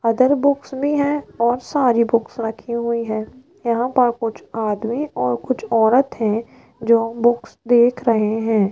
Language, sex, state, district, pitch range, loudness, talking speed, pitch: Hindi, female, Rajasthan, Jaipur, 225-255 Hz, -19 LUFS, 160 wpm, 235 Hz